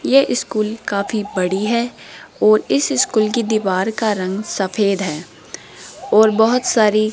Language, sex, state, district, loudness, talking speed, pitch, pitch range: Hindi, female, Rajasthan, Jaipur, -17 LUFS, 150 wpm, 215 Hz, 195-220 Hz